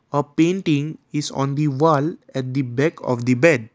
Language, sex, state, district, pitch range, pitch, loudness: English, male, Assam, Kamrup Metropolitan, 135-160 Hz, 145 Hz, -20 LUFS